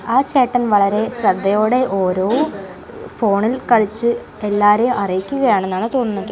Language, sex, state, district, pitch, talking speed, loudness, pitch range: Malayalam, female, Kerala, Kozhikode, 215 Hz, 95 wpm, -17 LUFS, 200-245 Hz